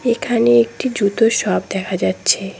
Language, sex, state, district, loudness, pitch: Bengali, female, West Bengal, Cooch Behar, -17 LUFS, 200 Hz